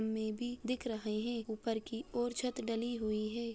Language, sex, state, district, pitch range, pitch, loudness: Hindi, female, Bihar, Saharsa, 220-240 Hz, 230 Hz, -38 LUFS